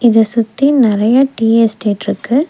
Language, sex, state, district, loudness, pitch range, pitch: Tamil, female, Tamil Nadu, Nilgiris, -12 LUFS, 220-260 Hz, 230 Hz